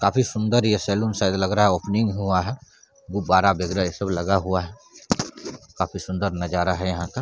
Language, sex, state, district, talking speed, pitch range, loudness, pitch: Hindi, male, Bihar, Saran, 200 wpm, 95-105 Hz, -23 LUFS, 95 Hz